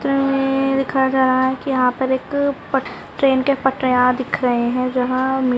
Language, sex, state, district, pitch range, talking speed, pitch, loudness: Hindi, female, Karnataka, Dakshina Kannada, 255-270 Hz, 150 wpm, 260 Hz, -18 LUFS